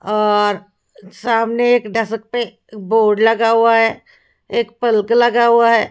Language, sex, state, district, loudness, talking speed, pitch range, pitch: Hindi, female, Haryana, Rohtak, -15 LUFS, 140 wpm, 215-235 Hz, 225 Hz